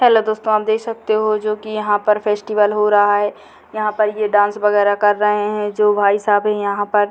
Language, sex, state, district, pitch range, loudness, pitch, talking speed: Hindi, female, Bihar, Sitamarhi, 205-215 Hz, -17 LUFS, 210 Hz, 245 wpm